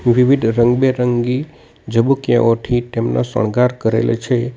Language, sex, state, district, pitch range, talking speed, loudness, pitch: Gujarati, male, Gujarat, Navsari, 115-125 Hz, 90 wpm, -16 LUFS, 120 Hz